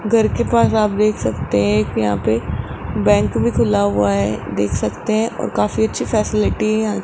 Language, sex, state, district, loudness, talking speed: Hindi, male, Rajasthan, Jaipur, -18 LUFS, 215 wpm